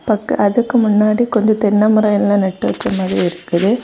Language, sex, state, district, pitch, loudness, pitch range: Tamil, female, Tamil Nadu, Kanyakumari, 210 Hz, -15 LUFS, 200-220 Hz